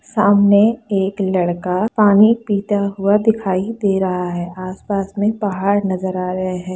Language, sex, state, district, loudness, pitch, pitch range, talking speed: Hindi, female, Bihar, Lakhisarai, -17 LUFS, 200 Hz, 185-205 Hz, 150 wpm